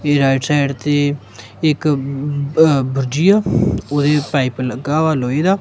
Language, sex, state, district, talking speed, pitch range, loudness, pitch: Punjabi, male, Punjab, Kapurthala, 140 wpm, 135-155 Hz, -16 LUFS, 145 Hz